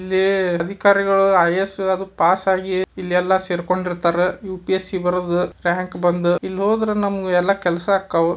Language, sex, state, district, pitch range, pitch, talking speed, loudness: Kannada, male, Karnataka, Dharwad, 175-195 Hz, 185 Hz, 100 wpm, -19 LUFS